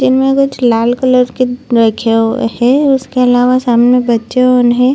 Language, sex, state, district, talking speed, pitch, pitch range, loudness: Hindi, female, Chhattisgarh, Bilaspur, 170 wpm, 250 Hz, 235-255 Hz, -11 LUFS